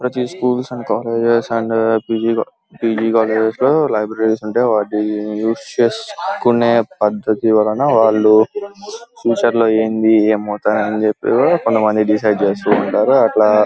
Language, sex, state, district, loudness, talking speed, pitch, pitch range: Telugu, male, Andhra Pradesh, Guntur, -15 LUFS, 95 wpm, 110 Hz, 110-115 Hz